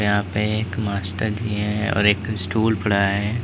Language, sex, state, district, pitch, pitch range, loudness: Hindi, male, Uttar Pradesh, Lalitpur, 105 Hz, 100-110 Hz, -21 LUFS